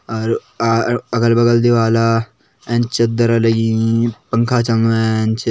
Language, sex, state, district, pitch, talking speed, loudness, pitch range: Kumaoni, male, Uttarakhand, Tehri Garhwal, 115 Hz, 110 wpm, -16 LUFS, 115-120 Hz